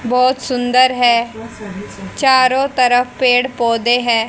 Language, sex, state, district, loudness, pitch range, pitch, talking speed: Hindi, female, Haryana, Charkhi Dadri, -14 LUFS, 235-255 Hz, 245 Hz, 110 wpm